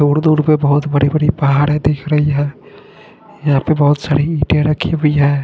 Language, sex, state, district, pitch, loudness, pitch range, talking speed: Hindi, male, Punjab, Fazilka, 150 Hz, -14 LUFS, 145-155 Hz, 200 wpm